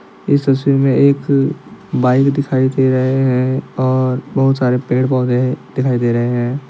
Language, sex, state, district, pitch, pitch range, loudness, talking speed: Hindi, male, Jharkhand, Deoghar, 130 Hz, 125-135 Hz, -15 LUFS, 160 wpm